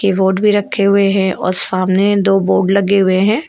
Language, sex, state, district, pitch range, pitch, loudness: Hindi, female, Uttar Pradesh, Shamli, 190-200 Hz, 195 Hz, -13 LUFS